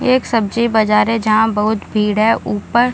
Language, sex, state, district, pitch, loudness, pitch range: Hindi, female, Maharashtra, Chandrapur, 220 Hz, -15 LUFS, 210-230 Hz